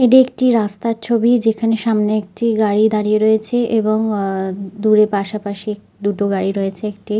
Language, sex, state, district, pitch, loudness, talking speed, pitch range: Bengali, female, West Bengal, North 24 Parganas, 215 Hz, -17 LUFS, 160 wpm, 205-225 Hz